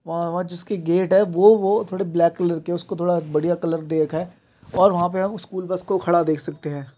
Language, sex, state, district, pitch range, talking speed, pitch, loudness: Hindi, male, Uttar Pradesh, Deoria, 170-190 Hz, 260 wpm, 175 Hz, -21 LUFS